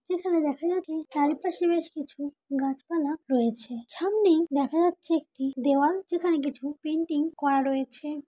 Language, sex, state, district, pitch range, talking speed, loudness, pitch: Bengali, female, West Bengal, Dakshin Dinajpur, 280-335 Hz, 145 wpm, -27 LUFS, 295 Hz